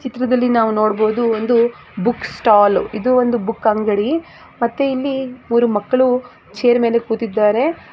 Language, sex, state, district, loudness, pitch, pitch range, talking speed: Kannada, female, Karnataka, Gulbarga, -17 LUFS, 235 Hz, 220-250 Hz, 145 wpm